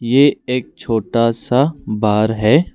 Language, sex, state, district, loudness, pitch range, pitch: Hindi, male, Arunachal Pradesh, Lower Dibang Valley, -16 LUFS, 110-135 Hz, 115 Hz